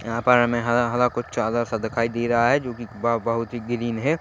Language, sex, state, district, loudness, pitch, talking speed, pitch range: Hindi, male, Chhattisgarh, Bilaspur, -23 LUFS, 120 Hz, 255 wpm, 115-120 Hz